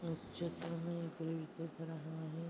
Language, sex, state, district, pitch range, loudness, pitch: Hindi, female, Uttar Pradesh, Deoria, 160-170 Hz, -44 LUFS, 165 Hz